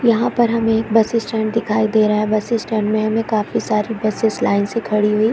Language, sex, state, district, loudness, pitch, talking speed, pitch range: Hindi, female, Chhattisgarh, Korba, -18 LUFS, 220 Hz, 235 wpm, 215-230 Hz